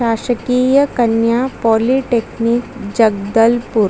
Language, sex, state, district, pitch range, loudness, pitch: Hindi, female, Chhattisgarh, Bastar, 225-250 Hz, -15 LUFS, 235 Hz